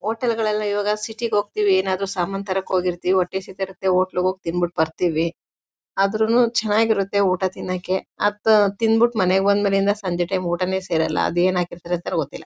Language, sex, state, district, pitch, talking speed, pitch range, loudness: Kannada, female, Karnataka, Mysore, 190 Hz, 175 wpm, 180-205 Hz, -21 LUFS